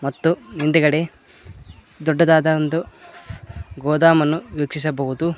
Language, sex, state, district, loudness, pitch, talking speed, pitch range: Kannada, male, Karnataka, Koppal, -19 LUFS, 155 Hz, 80 wpm, 140-160 Hz